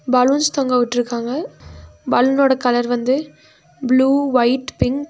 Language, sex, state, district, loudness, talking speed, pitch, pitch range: Tamil, female, Tamil Nadu, Nilgiris, -17 LUFS, 115 wpm, 255 Hz, 245-275 Hz